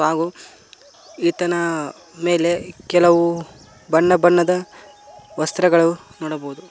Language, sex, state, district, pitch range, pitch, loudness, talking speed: Kannada, male, Karnataka, Koppal, 165-175 Hz, 170 Hz, -19 LUFS, 70 wpm